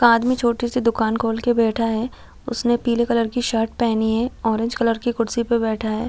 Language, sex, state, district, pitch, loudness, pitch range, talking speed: Hindi, female, Chhattisgarh, Bilaspur, 230 Hz, -21 LUFS, 225-240 Hz, 225 wpm